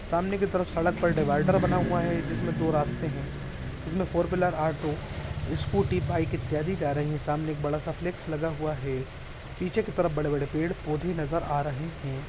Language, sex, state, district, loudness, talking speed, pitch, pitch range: Hindi, male, Bihar, Araria, -28 LUFS, 200 wpm, 160 Hz, 150-175 Hz